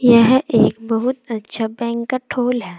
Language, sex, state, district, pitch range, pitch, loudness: Hindi, female, Uttar Pradesh, Saharanpur, 225-250 Hz, 235 Hz, -18 LUFS